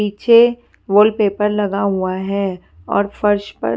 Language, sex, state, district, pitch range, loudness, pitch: Hindi, female, Punjab, Fazilka, 190-210 Hz, -16 LUFS, 205 Hz